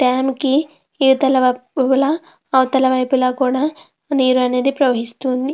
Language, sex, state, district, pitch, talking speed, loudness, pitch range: Telugu, female, Andhra Pradesh, Krishna, 265 Hz, 140 wpm, -17 LUFS, 255-275 Hz